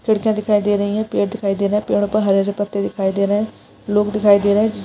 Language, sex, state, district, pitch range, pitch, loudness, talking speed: Hindi, female, Rajasthan, Nagaur, 200-210 Hz, 205 Hz, -18 LUFS, 295 wpm